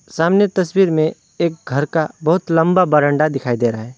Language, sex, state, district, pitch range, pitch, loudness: Hindi, male, West Bengal, Alipurduar, 145-175 Hz, 160 Hz, -17 LUFS